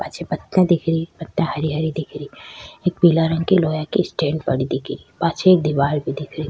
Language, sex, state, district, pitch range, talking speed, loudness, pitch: Rajasthani, female, Rajasthan, Churu, 155-175 Hz, 230 wpm, -20 LUFS, 165 Hz